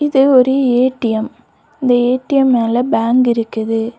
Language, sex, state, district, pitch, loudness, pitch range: Tamil, female, Tamil Nadu, Kanyakumari, 245 Hz, -14 LUFS, 230-265 Hz